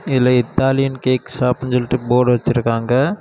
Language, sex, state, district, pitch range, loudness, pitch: Tamil, male, Tamil Nadu, Kanyakumari, 125-130 Hz, -17 LUFS, 125 Hz